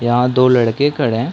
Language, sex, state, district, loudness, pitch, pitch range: Hindi, male, Chhattisgarh, Korba, -14 LUFS, 125 Hz, 120-130 Hz